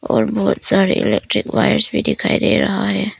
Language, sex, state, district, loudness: Hindi, female, Arunachal Pradesh, Papum Pare, -16 LUFS